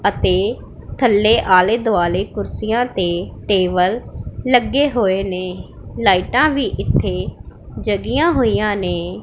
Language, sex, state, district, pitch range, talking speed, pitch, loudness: Punjabi, female, Punjab, Pathankot, 185-235 Hz, 105 wpm, 205 Hz, -17 LUFS